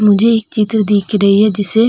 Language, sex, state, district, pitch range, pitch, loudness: Hindi, female, Uttar Pradesh, Hamirpur, 205-220 Hz, 210 Hz, -13 LUFS